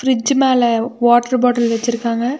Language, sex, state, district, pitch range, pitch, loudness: Tamil, female, Tamil Nadu, Nilgiris, 235-255 Hz, 240 Hz, -15 LUFS